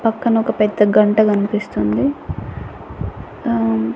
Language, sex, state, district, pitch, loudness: Telugu, female, Andhra Pradesh, Annamaya, 210 Hz, -17 LUFS